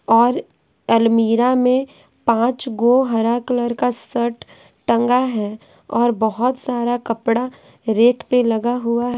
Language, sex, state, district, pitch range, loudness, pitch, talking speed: Hindi, female, Bihar, Patna, 230-245 Hz, -18 LUFS, 240 Hz, 125 wpm